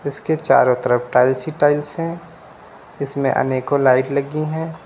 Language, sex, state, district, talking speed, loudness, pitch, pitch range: Hindi, male, Uttar Pradesh, Lucknow, 150 wpm, -18 LUFS, 140 Hz, 130-155 Hz